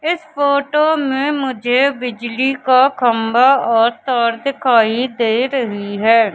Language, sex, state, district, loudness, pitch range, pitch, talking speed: Hindi, female, Madhya Pradesh, Katni, -15 LUFS, 230-275 Hz, 255 Hz, 125 wpm